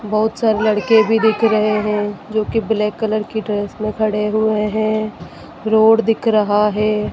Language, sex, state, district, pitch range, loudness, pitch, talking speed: Hindi, female, Madhya Pradesh, Dhar, 210-220 Hz, -17 LUFS, 215 Hz, 175 wpm